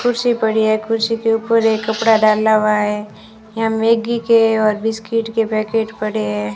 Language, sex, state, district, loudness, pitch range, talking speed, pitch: Hindi, female, Rajasthan, Bikaner, -16 LUFS, 215-225 Hz, 185 wpm, 220 Hz